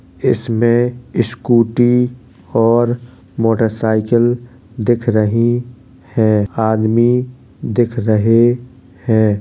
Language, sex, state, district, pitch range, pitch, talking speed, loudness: Hindi, male, Uttar Pradesh, Jalaun, 110-125 Hz, 120 Hz, 70 wpm, -15 LUFS